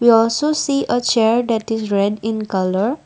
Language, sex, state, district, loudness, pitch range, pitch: English, female, Assam, Kamrup Metropolitan, -17 LUFS, 215-245 Hz, 225 Hz